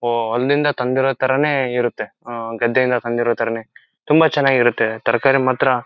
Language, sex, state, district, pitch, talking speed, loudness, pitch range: Kannada, male, Karnataka, Shimoga, 125 Hz, 165 wpm, -18 LUFS, 120-135 Hz